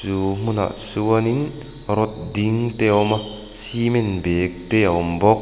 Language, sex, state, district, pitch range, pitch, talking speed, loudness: Mizo, male, Mizoram, Aizawl, 100-115 Hz, 105 Hz, 165 wpm, -19 LUFS